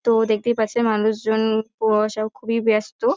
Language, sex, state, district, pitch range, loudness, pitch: Bengali, female, West Bengal, North 24 Parganas, 215-230 Hz, -21 LUFS, 220 Hz